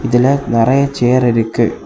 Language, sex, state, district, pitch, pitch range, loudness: Tamil, male, Tamil Nadu, Kanyakumari, 120 Hz, 115-135 Hz, -13 LUFS